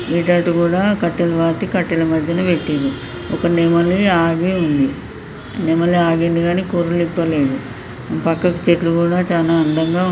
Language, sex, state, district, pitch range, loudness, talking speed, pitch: Telugu, male, Telangana, Nalgonda, 165-175 Hz, -17 LUFS, 115 wpm, 170 Hz